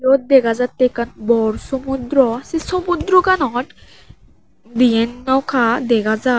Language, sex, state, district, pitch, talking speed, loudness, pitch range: Chakma, female, Tripura, West Tripura, 255 Hz, 115 wpm, -17 LUFS, 235-270 Hz